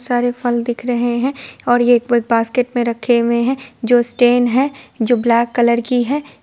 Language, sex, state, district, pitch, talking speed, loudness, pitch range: Hindi, female, Bihar, Supaul, 245 Hz, 195 wpm, -16 LUFS, 235-250 Hz